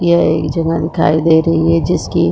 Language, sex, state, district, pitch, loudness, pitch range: Hindi, female, Jharkhand, Sahebganj, 165 Hz, -13 LUFS, 160-165 Hz